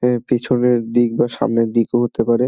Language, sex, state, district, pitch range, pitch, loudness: Bengali, male, West Bengal, Dakshin Dinajpur, 115-125 Hz, 120 Hz, -17 LUFS